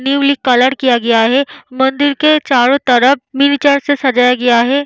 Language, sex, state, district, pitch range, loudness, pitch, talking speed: Hindi, female, Bihar, Vaishali, 250-280 Hz, -12 LUFS, 270 Hz, 160 wpm